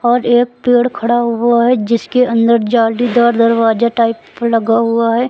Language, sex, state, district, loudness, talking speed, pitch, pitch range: Hindi, female, Uttar Pradesh, Lucknow, -13 LUFS, 160 wpm, 235 Hz, 230-240 Hz